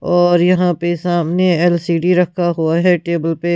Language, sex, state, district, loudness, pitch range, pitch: Hindi, female, Punjab, Pathankot, -15 LUFS, 170-180 Hz, 175 Hz